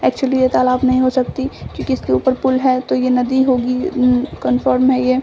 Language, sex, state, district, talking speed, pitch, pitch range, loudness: Hindi, female, Bihar, Samastipur, 220 wpm, 255 Hz, 250-260 Hz, -16 LUFS